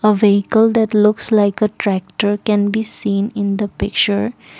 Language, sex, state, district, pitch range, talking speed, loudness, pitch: English, female, Assam, Kamrup Metropolitan, 205-215 Hz, 170 wpm, -16 LUFS, 210 Hz